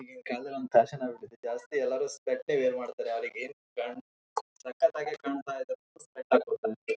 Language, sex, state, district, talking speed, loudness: Kannada, male, Karnataka, Raichur, 70 wpm, -32 LUFS